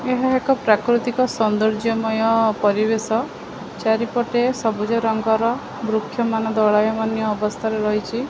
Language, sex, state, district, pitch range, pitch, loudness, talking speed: Odia, female, Odisha, Khordha, 215-240 Hz, 225 Hz, -20 LUFS, 85 wpm